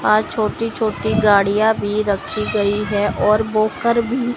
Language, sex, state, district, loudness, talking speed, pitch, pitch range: Hindi, male, Chandigarh, Chandigarh, -18 LUFS, 150 wpm, 215 Hz, 205-220 Hz